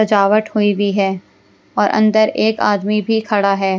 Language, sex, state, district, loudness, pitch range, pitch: Hindi, female, Punjab, Pathankot, -15 LUFS, 200-215 Hz, 210 Hz